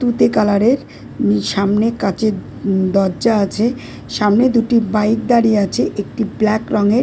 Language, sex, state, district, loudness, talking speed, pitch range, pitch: Bengali, female, West Bengal, Dakshin Dinajpur, -16 LUFS, 135 wpm, 200-230 Hz, 215 Hz